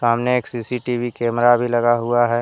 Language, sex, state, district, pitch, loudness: Hindi, male, Jharkhand, Deoghar, 120 Hz, -19 LUFS